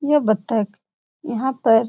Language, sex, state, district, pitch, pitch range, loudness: Hindi, female, Uttar Pradesh, Etah, 225 Hz, 215-265 Hz, -21 LUFS